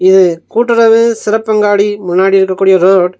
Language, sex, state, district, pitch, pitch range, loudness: Tamil, male, Tamil Nadu, Nilgiris, 195 Hz, 185-220 Hz, -10 LUFS